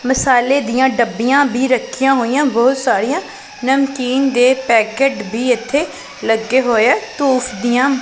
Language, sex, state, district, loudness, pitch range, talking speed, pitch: Punjabi, female, Punjab, Pathankot, -15 LUFS, 240-270 Hz, 135 wpm, 255 Hz